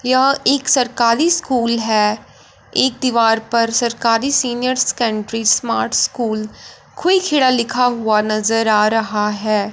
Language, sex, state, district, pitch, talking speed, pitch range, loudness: Hindi, female, Punjab, Fazilka, 235 Hz, 130 wpm, 220-255 Hz, -16 LUFS